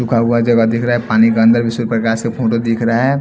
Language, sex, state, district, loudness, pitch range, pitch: Hindi, male, Haryana, Jhajjar, -14 LUFS, 115-120 Hz, 115 Hz